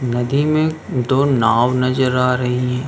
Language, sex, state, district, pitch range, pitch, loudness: Hindi, male, Uttar Pradesh, Jalaun, 125-135 Hz, 125 Hz, -17 LUFS